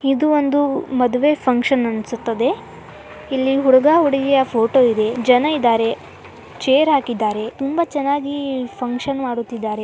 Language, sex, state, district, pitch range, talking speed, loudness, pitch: Kannada, male, Karnataka, Dharwad, 235-280 Hz, 110 wpm, -18 LUFS, 260 Hz